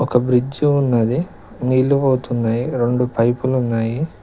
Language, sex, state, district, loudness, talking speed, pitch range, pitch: Telugu, male, Telangana, Mahabubabad, -18 LUFS, 115 wpm, 120-135 Hz, 125 Hz